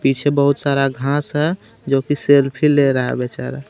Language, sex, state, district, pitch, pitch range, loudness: Hindi, female, Jharkhand, Garhwa, 140 Hz, 135-145 Hz, -17 LUFS